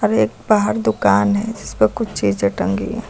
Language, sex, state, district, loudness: Hindi, female, Uttar Pradesh, Lucknow, -18 LUFS